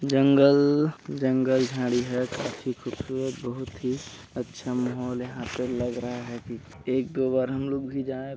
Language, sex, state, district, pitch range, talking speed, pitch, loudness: Hindi, male, Chhattisgarh, Balrampur, 125-135 Hz, 165 wpm, 130 Hz, -27 LUFS